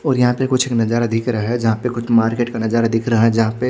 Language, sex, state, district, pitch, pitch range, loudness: Hindi, male, Chhattisgarh, Raipur, 115 Hz, 115-125 Hz, -17 LUFS